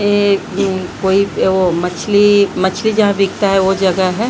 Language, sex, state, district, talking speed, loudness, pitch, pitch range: Hindi, female, Bihar, Patna, 155 wpm, -14 LUFS, 195 Hz, 190-205 Hz